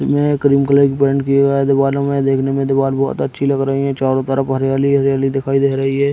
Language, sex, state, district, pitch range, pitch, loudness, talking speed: Hindi, male, Chhattisgarh, Raigarh, 135-140 Hz, 135 Hz, -15 LUFS, 245 wpm